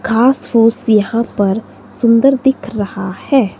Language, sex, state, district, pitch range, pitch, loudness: Hindi, female, Himachal Pradesh, Shimla, 205-260 Hz, 230 Hz, -14 LUFS